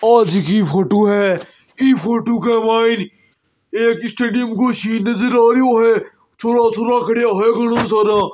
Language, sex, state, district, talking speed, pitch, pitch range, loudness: Marwari, male, Rajasthan, Nagaur, 150 wpm, 230 Hz, 215-235 Hz, -15 LUFS